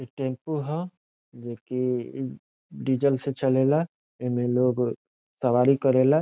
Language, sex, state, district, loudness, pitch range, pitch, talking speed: Bhojpuri, male, Bihar, Saran, -25 LUFS, 125-140 Hz, 130 Hz, 125 wpm